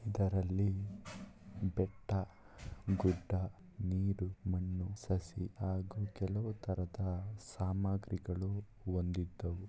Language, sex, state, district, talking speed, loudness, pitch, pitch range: Kannada, male, Karnataka, Mysore, 75 wpm, -39 LUFS, 95 Hz, 95-100 Hz